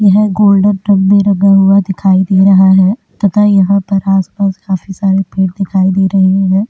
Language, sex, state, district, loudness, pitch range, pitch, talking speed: Hindi, female, Uttar Pradesh, Hamirpur, -10 LUFS, 190-200 Hz, 195 Hz, 195 wpm